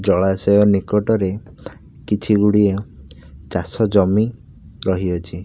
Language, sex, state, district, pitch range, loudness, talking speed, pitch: Odia, male, Odisha, Khordha, 90-105 Hz, -18 LUFS, 90 wpm, 100 Hz